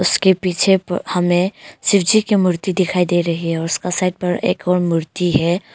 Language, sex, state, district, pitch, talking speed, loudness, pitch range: Hindi, female, Arunachal Pradesh, Longding, 180 Hz, 190 wpm, -17 LUFS, 175-185 Hz